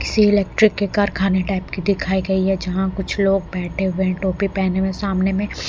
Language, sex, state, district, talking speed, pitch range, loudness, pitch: Hindi, female, Odisha, Malkangiri, 210 wpm, 190-200 Hz, -19 LUFS, 190 Hz